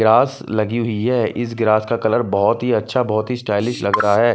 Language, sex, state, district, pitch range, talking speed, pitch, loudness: Hindi, male, Punjab, Fazilka, 110-120 Hz, 235 wpm, 115 Hz, -18 LUFS